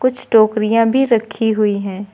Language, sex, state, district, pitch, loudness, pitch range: Hindi, female, Uttar Pradesh, Lucknow, 220 Hz, -15 LUFS, 210-230 Hz